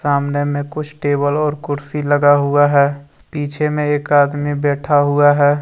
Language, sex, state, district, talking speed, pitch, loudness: Hindi, male, Jharkhand, Deoghar, 170 wpm, 145 Hz, -16 LUFS